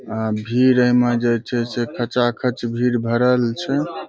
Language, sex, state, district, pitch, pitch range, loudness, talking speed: Maithili, male, Bihar, Saharsa, 120 Hz, 120-125 Hz, -19 LUFS, 130 wpm